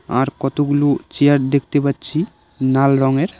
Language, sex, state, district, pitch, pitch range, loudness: Bengali, male, West Bengal, Cooch Behar, 140 Hz, 135-145 Hz, -17 LUFS